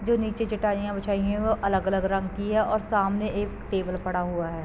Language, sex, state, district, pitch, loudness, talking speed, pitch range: Hindi, female, Uttar Pradesh, Varanasi, 200 Hz, -26 LUFS, 220 wpm, 190-215 Hz